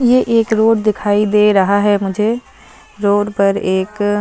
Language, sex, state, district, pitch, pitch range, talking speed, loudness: Hindi, female, Punjab, Fazilka, 205 Hz, 200-220 Hz, 170 wpm, -14 LUFS